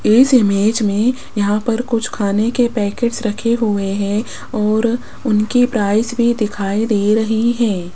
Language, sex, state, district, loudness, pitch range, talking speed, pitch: Hindi, female, Rajasthan, Jaipur, -16 LUFS, 205-235 Hz, 150 wpm, 220 Hz